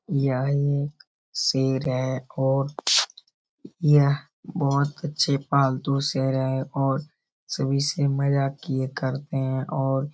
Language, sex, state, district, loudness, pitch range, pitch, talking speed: Hindi, male, Bihar, Darbhanga, -24 LUFS, 135-140 Hz, 140 Hz, 120 wpm